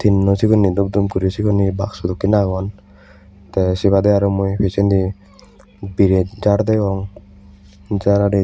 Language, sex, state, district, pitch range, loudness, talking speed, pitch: Chakma, male, Tripura, West Tripura, 95-100 Hz, -17 LUFS, 150 wpm, 100 Hz